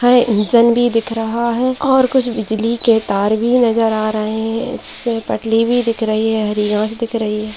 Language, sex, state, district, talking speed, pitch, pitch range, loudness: Hindi, female, Bihar, Saharsa, 215 wpm, 225 Hz, 220-240 Hz, -16 LUFS